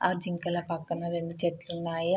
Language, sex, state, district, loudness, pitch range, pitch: Telugu, female, Andhra Pradesh, Srikakulam, -32 LUFS, 170-175 Hz, 170 Hz